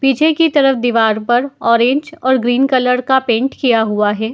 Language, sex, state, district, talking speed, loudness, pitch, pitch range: Hindi, female, Uttar Pradesh, Muzaffarnagar, 195 wpm, -14 LUFS, 255 Hz, 230-270 Hz